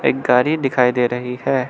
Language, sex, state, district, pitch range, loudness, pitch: Hindi, male, Arunachal Pradesh, Lower Dibang Valley, 125-135 Hz, -17 LUFS, 125 Hz